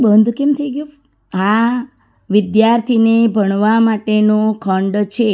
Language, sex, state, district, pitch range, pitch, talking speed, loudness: Gujarati, female, Gujarat, Valsad, 210-235 Hz, 220 Hz, 125 wpm, -14 LUFS